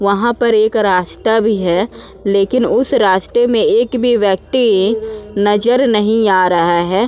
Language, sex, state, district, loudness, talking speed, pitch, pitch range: Hindi, female, Uttar Pradesh, Muzaffarnagar, -13 LUFS, 150 wpm, 215 Hz, 195-240 Hz